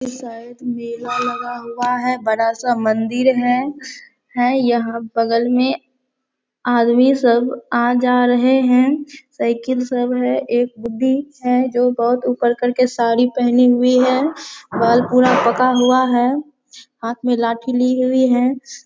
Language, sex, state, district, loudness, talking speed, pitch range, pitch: Hindi, female, Bihar, Araria, -17 LUFS, 145 wpm, 240-255 Hz, 250 Hz